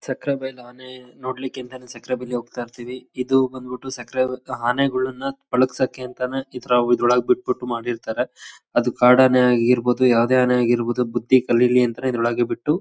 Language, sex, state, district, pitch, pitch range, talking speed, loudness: Kannada, male, Karnataka, Shimoga, 125 Hz, 120-130 Hz, 165 wpm, -20 LUFS